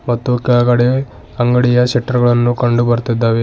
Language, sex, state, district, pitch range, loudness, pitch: Kannada, male, Karnataka, Bidar, 120-125 Hz, -14 LUFS, 120 Hz